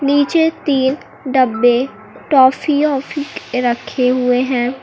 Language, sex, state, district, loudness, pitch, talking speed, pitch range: Hindi, female, Uttar Pradesh, Lucknow, -15 LUFS, 260 Hz, 110 wpm, 250-285 Hz